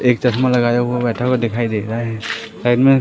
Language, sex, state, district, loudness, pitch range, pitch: Hindi, male, Madhya Pradesh, Katni, -17 LUFS, 115-125 Hz, 120 Hz